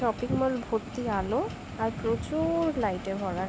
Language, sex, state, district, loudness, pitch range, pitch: Bengali, female, West Bengal, Jhargram, -30 LUFS, 200-250 Hz, 225 Hz